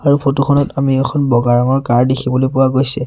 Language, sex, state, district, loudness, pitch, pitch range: Assamese, male, Assam, Sonitpur, -14 LUFS, 135 Hz, 125-140 Hz